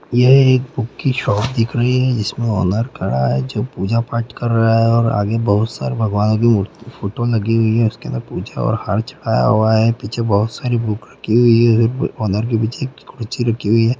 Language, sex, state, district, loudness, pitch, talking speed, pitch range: Hindi, male, Bihar, Gopalganj, -17 LUFS, 115 Hz, 220 wpm, 110-120 Hz